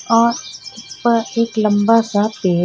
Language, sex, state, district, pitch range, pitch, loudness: Hindi, female, Jharkhand, Ranchi, 205-230 Hz, 230 Hz, -16 LUFS